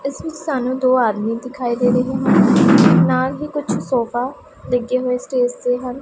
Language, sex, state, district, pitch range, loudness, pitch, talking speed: Punjabi, female, Punjab, Pathankot, 245-260 Hz, -17 LUFS, 250 Hz, 160 wpm